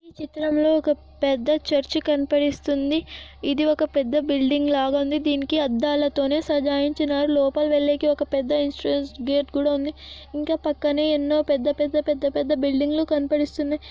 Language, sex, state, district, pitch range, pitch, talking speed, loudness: Telugu, female, Andhra Pradesh, Anantapur, 285-300 Hz, 295 Hz, 120 wpm, -22 LUFS